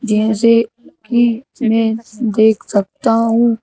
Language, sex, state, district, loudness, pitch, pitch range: Hindi, male, Madhya Pradesh, Bhopal, -15 LUFS, 230 Hz, 220-235 Hz